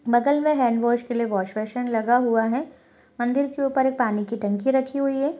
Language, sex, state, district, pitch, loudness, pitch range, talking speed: Hindi, female, Rajasthan, Churu, 245 Hz, -23 LUFS, 230-275 Hz, 235 wpm